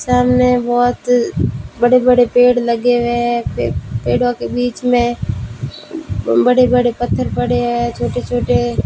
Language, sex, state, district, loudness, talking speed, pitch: Hindi, female, Rajasthan, Bikaner, -15 LUFS, 135 wpm, 235 Hz